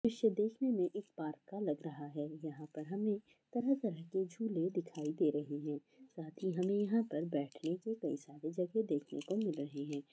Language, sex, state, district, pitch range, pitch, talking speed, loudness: Hindi, female, Bihar, Kishanganj, 150-210 Hz, 170 Hz, 200 wpm, -39 LUFS